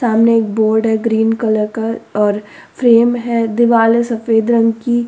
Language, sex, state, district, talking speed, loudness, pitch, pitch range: Hindi, female, Uttar Pradesh, Muzaffarnagar, 175 wpm, -14 LUFS, 225 Hz, 220-235 Hz